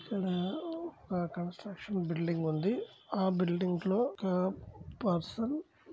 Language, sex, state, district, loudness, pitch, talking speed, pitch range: Telugu, male, Andhra Pradesh, Chittoor, -34 LUFS, 190 Hz, 110 wpm, 175-225 Hz